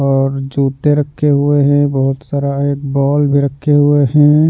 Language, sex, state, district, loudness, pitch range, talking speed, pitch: Hindi, male, Bihar, Patna, -13 LUFS, 140-145 Hz, 175 wpm, 140 Hz